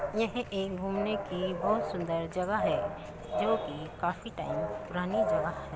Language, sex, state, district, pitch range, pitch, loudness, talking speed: Hindi, female, Uttar Pradesh, Muzaffarnagar, 180-210 Hz, 195 Hz, -32 LUFS, 155 wpm